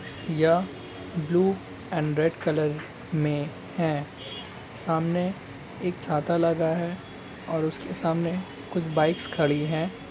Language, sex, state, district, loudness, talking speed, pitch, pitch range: Hindi, male, Uttarakhand, Uttarkashi, -27 LUFS, 115 wpm, 160 Hz, 150-170 Hz